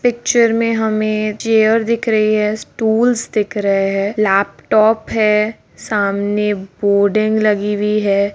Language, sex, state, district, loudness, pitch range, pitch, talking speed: Hindi, female, Bihar, Kishanganj, -15 LUFS, 205-220 Hz, 215 Hz, 130 wpm